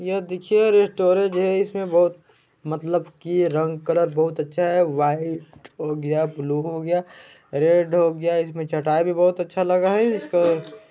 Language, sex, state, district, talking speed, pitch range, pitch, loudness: Chhattisgarhi, male, Chhattisgarh, Balrampur, 170 wpm, 160-180 Hz, 170 Hz, -21 LUFS